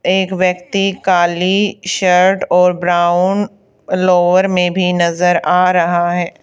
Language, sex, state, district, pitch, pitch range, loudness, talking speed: Hindi, female, Haryana, Charkhi Dadri, 180 Hz, 175-190 Hz, -13 LUFS, 120 wpm